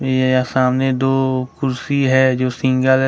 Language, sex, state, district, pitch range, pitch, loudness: Hindi, male, Jharkhand, Ranchi, 130-135 Hz, 130 Hz, -17 LUFS